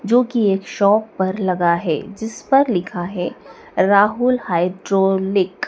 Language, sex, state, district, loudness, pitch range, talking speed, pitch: Hindi, female, Madhya Pradesh, Dhar, -18 LUFS, 185-220 Hz, 135 wpm, 195 Hz